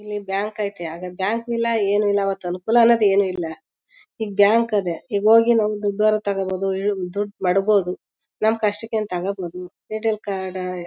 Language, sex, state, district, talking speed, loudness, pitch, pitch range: Kannada, female, Karnataka, Mysore, 180 wpm, -21 LUFS, 205 Hz, 185-220 Hz